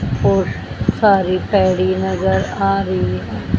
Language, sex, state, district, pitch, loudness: Hindi, female, Haryana, Charkhi Dadri, 95 Hz, -17 LUFS